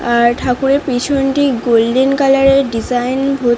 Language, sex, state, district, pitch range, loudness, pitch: Bengali, female, West Bengal, Dakshin Dinajpur, 240-275 Hz, -13 LUFS, 260 Hz